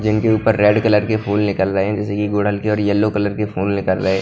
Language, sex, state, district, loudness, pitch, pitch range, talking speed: Hindi, male, Punjab, Kapurthala, -17 LUFS, 105 Hz, 100-105 Hz, 270 wpm